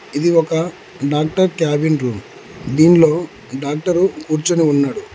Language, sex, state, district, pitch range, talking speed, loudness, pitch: Telugu, male, Telangana, Mahabubabad, 145-170 Hz, 105 wpm, -16 LUFS, 155 Hz